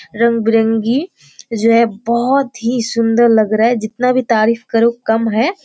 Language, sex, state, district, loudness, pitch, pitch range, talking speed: Hindi, female, Bihar, Kishanganj, -14 LUFS, 230 Hz, 225-240 Hz, 170 wpm